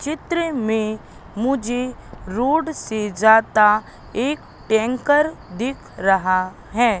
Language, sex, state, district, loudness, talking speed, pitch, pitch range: Hindi, female, Madhya Pradesh, Katni, -20 LUFS, 95 wpm, 225 Hz, 215-275 Hz